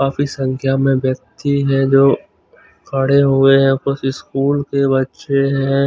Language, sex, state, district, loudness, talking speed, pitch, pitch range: Hindi, male, Chandigarh, Chandigarh, -16 LUFS, 145 wpm, 135 Hz, 135-140 Hz